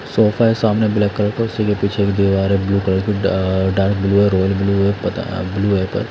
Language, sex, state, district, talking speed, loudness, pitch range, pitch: Hindi, male, Delhi, New Delhi, 245 wpm, -17 LUFS, 95-105 Hz, 100 Hz